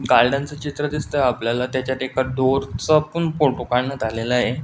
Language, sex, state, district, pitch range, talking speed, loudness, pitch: Marathi, male, Maharashtra, Solapur, 125-145 Hz, 180 wpm, -21 LUFS, 130 Hz